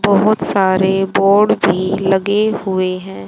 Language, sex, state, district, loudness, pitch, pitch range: Hindi, female, Haryana, Jhajjar, -14 LUFS, 195 Hz, 185-200 Hz